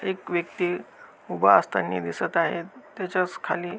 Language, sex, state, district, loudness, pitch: Marathi, male, Maharashtra, Aurangabad, -25 LUFS, 175 Hz